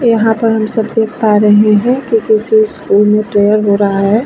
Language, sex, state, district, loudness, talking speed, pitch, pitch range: Hindi, female, Bihar, Vaishali, -11 LUFS, 225 wpm, 215 Hz, 210-225 Hz